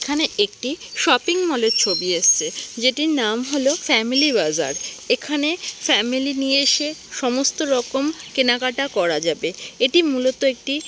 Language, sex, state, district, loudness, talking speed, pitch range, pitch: Bengali, female, West Bengal, Malda, -19 LUFS, 130 wpm, 255-310 Hz, 275 Hz